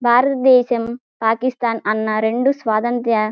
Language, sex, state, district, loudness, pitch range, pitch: Telugu, female, Andhra Pradesh, Guntur, -17 LUFS, 220-250 Hz, 235 Hz